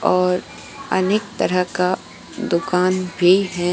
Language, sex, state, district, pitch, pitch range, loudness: Hindi, female, Bihar, Katihar, 180 Hz, 180-185 Hz, -19 LUFS